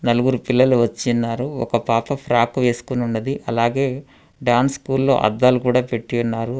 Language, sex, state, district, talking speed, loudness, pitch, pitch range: Telugu, male, Telangana, Hyderabad, 135 wpm, -19 LUFS, 120 Hz, 120-130 Hz